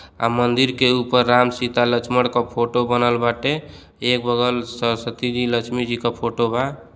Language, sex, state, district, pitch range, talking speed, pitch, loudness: Bhojpuri, male, Uttar Pradesh, Deoria, 120-125 Hz, 170 wpm, 120 Hz, -19 LUFS